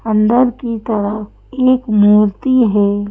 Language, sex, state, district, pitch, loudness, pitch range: Hindi, female, Madhya Pradesh, Bhopal, 220 Hz, -14 LUFS, 205-245 Hz